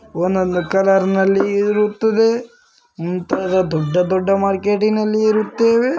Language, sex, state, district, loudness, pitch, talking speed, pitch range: Kannada, male, Karnataka, Bellary, -17 LUFS, 195 Hz, 100 wpm, 185-215 Hz